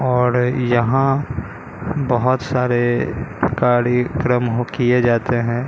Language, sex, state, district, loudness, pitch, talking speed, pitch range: Hindi, male, Bihar, Katihar, -18 LUFS, 125 Hz, 95 wpm, 120-130 Hz